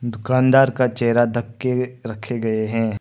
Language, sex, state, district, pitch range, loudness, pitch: Hindi, male, Arunachal Pradesh, Papum Pare, 115-125 Hz, -19 LUFS, 120 Hz